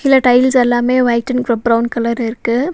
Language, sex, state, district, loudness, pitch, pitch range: Tamil, female, Tamil Nadu, Nilgiris, -14 LUFS, 245 Hz, 235-255 Hz